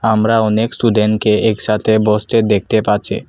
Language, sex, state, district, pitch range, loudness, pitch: Bengali, male, Assam, Kamrup Metropolitan, 105-110 Hz, -14 LUFS, 110 Hz